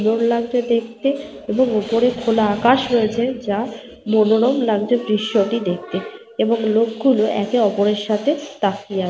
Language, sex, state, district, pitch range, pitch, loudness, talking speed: Bengali, female, Jharkhand, Sahebganj, 215-245 Hz, 230 Hz, -19 LUFS, 145 wpm